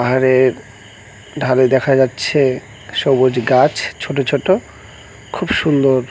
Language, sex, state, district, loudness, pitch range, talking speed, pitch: Bengali, male, West Bengal, Cooch Behar, -15 LUFS, 125-140 Hz, 110 wpm, 130 Hz